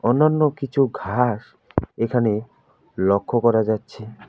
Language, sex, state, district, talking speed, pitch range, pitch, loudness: Bengali, male, West Bengal, Alipurduar, 100 wpm, 110-125 Hz, 115 Hz, -21 LUFS